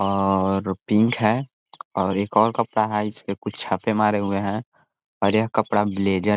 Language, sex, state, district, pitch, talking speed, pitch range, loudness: Hindi, male, Chhattisgarh, Korba, 105 Hz, 170 wpm, 100-110 Hz, -22 LUFS